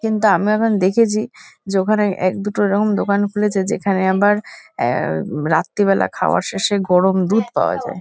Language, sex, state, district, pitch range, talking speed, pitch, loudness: Bengali, female, West Bengal, Kolkata, 190-210 Hz, 155 wpm, 200 Hz, -17 LUFS